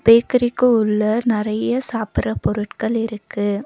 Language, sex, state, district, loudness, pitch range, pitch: Tamil, female, Tamil Nadu, Nilgiris, -19 LUFS, 210-235 Hz, 220 Hz